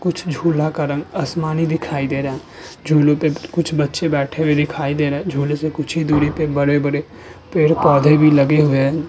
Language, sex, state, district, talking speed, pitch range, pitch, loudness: Hindi, male, Uttar Pradesh, Budaun, 200 wpm, 145-155 Hz, 150 Hz, -17 LUFS